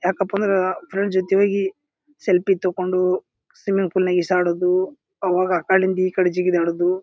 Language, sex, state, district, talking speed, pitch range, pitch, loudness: Kannada, male, Karnataka, Bijapur, 155 wpm, 180-195 Hz, 185 Hz, -20 LUFS